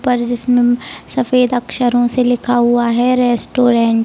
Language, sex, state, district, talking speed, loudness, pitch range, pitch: Hindi, female, Bihar, East Champaran, 175 wpm, -14 LUFS, 240-250 Hz, 245 Hz